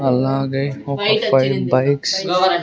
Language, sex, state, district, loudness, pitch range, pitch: Telugu, male, Andhra Pradesh, Sri Satya Sai, -18 LUFS, 135-180 Hz, 140 Hz